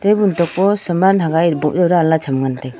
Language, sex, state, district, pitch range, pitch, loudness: Wancho, female, Arunachal Pradesh, Longding, 150-190 Hz, 170 Hz, -15 LUFS